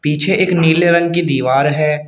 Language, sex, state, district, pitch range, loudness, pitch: Hindi, male, Uttar Pradesh, Shamli, 150-170 Hz, -13 LUFS, 160 Hz